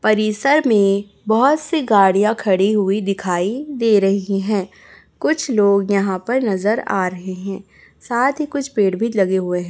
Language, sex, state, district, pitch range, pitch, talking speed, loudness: Hindi, female, Chhattisgarh, Raipur, 195-235 Hz, 205 Hz, 150 wpm, -18 LUFS